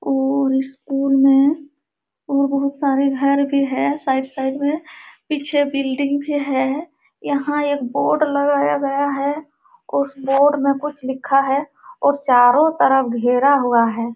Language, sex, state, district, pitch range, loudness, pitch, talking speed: Hindi, female, Uttar Pradesh, Jalaun, 270-290 Hz, -18 LUFS, 275 Hz, 145 wpm